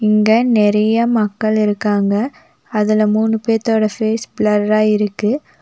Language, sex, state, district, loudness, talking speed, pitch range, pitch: Tamil, female, Tamil Nadu, Nilgiris, -15 LUFS, 105 wpm, 210-225 Hz, 215 Hz